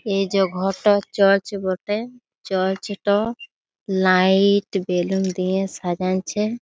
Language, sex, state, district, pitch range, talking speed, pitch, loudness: Bengali, female, West Bengal, Jalpaiguri, 185-205 Hz, 100 wpm, 195 Hz, -21 LUFS